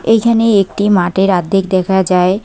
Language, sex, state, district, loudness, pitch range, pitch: Bengali, female, West Bengal, Cooch Behar, -12 LUFS, 185-205 Hz, 195 Hz